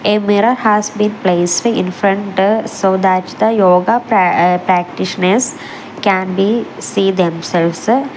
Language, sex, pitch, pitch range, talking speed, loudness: English, female, 195 Hz, 185-220 Hz, 125 wpm, -14 LUFS